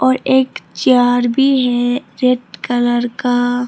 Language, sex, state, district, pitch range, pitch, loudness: Hindi, female, Tripura, Dhalai, 245-260 Hz, 245 Hz, -15 LUFS